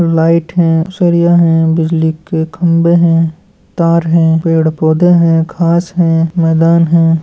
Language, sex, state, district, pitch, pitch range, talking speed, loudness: Hindi, male, West Bengal, Malda, 165 Hz, 165-170 Hz, 130 wpm, -11 LUFS